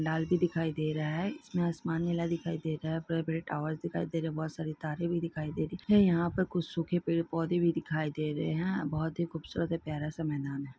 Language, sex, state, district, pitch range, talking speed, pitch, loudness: Hindi, female, Chhattisgarh, Sukma, 155-170 Hz, 260 wpm, 165 Hz, -33 LUFS